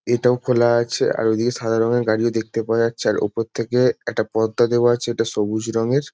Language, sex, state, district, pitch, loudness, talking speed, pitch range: Bengali, male, West Bengal, Jalpaiguri, 115 Hz, -20 LUFS, 205 wpm, 115-120 Hz